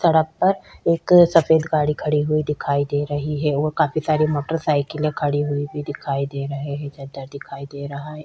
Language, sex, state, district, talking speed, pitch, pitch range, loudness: Hindi, female, Chhattisgarh, Kabirdham, 195 wpm, 150 Hz, 140-155 Hz, -21 LUFS